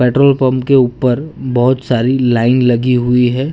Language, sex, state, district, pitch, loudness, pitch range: Hindi, male, Gujarat, Gandhinagar, 125 Hz, -13 LUFS, 125-130 Hz